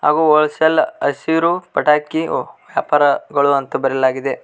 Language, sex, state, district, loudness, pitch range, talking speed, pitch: Kannada, male, Karnataka, Koppal, -16 LUFS, 140-160 Hz, 110 wpm, 150 Hz